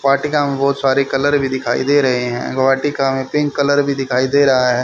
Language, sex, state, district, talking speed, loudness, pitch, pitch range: Hindi, male, Haryana, Rohtak, 235 wpm, -16 LUFS, 135 Hz, 130-145 Hz